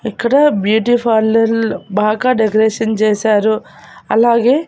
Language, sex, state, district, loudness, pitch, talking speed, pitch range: Telugu, female, Andhra Pradesh, Annamaya, -14 LUFS, 225 Hz, 90 wpm, 215-235 Hz